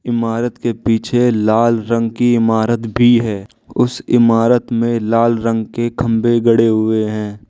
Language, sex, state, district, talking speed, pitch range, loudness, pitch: Hindi, male, Arunachal Pradesh, Lower Dibang Valley, 150 wpm, 110-120 Hz, -15 LUFS, 115 Hz